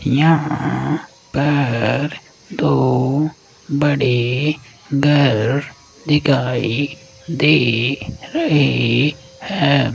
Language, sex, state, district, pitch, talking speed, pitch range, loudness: Hindi, male, Rajasthan, Jaipur, 140 Hz, 55 wpm, 130-150 Hz, -17 LUFS